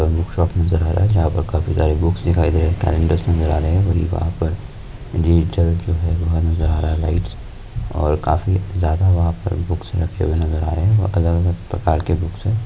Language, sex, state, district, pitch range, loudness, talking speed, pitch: Hindi, male, Rajasthan, Nagaur, 80-95 Hz, -19 LUFS, 210 wpm, 85 Hz